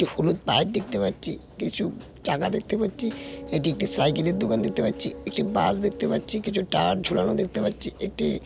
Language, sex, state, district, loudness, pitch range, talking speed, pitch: Bengali, male, West Bengal, Malda, -25 LUFS, 170-215 Hz, 185 wpm, 210 Hz